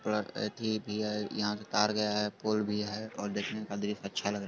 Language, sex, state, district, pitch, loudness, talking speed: Hindi, male, Bihar, Sitamarhi, 105 Hz, -33 LUFS, 280 wpm